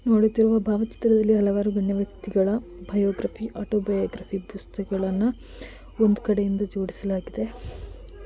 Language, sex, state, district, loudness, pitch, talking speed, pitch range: Kannada, female, Karnataka, Mysore, -24 LUFS, 205 Hz, 50 wpm, 195-220 Hz